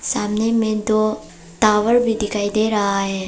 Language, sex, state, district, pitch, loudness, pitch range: Hindi, female, Arunachal Pradesh, Papum Pare, 210 Hz, -18 LUFS, 200-220 Hz